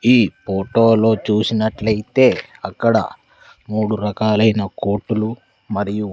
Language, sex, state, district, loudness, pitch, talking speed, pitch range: Telugu, male, Andhra Pradesh, Sri Satya Sai, -18 LUFS, 110 Hz, 80 wpm, 105-110 Hz